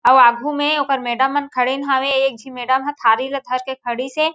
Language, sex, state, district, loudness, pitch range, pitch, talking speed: Chhattisgarhi, female, Chhattisgarh, Jashpur, -18 LUFS, 255-280 Hz, 265 Hz, 235 wpm